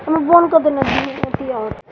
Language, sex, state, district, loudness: Hindi, female, Bihar, Sitamarhi, -16 LUFS